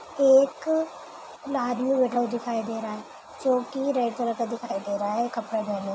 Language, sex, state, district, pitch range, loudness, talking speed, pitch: Hindi, female, Chhattisgarh, Kabirdham, 225-270 Hz, -26 LUFS, 190 wpm, 240 Hz